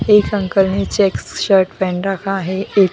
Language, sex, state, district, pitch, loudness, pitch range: Hindi, female, Bihar, Gaya, 195 Hz, -16 LUFS, 190-200 Hz